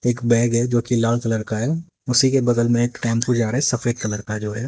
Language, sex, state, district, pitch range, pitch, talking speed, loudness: Hindi, male, Haryana, Jhajjar, 115-125 Hz, 120 Hz, 305 wpm, -20 LUFS